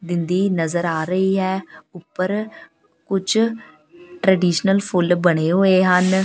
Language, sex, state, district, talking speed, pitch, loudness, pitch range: Punjabi, female, Punjab, Pathankot, 115 wpm, 185 Hz, -19 LUFS, 175-195 Hz